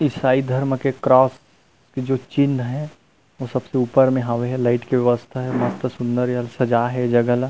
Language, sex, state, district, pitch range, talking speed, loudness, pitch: Chhattisgarhi, male, Chhattisgarh, Rajnandgaon, 120-130 Hz, 215 wpm, -20 LUFS, 130 Hz